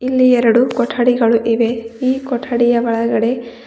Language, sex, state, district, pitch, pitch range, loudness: Kannada, female, Karnataka, Bidar, 240 Hz, 230-250 Hz, -15 LUFS